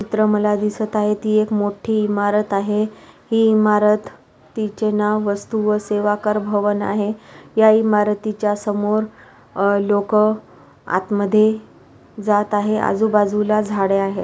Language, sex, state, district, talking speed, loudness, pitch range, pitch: Marathi, female, Maharashtra, Pune, 120 wpm, -18 LUFS, 205-215 Hz, 210 Hz